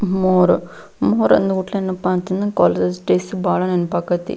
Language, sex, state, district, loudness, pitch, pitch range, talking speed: Kannada, female, Karnataka, Belgaum, -18 LUFS, 180 Hz, 175-190 Hz, 135 wpm